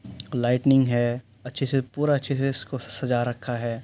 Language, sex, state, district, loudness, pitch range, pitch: Hindi, male, Uttar Pradesh, Jyotiba Phule Nagar, -25 LUFS, 120-135 Hz, 125 Hz